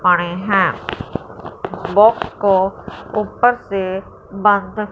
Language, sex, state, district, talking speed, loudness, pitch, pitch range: Hindi, female, Punjab, Fazilka, 85 wpm, -17 LUFS, 195 Hz, 190-210 Hz